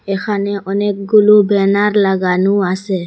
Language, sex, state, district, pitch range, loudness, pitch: Bengali, female, Assam, Hailakandi, 195-205 Hz, -14 LUFS, 200 Hz